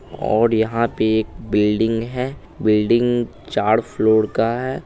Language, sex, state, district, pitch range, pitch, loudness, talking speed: Hindi, male, Bihar, Madhepura, 110-120 Hz, 110 Hz, -19 LUFS, 135 wpm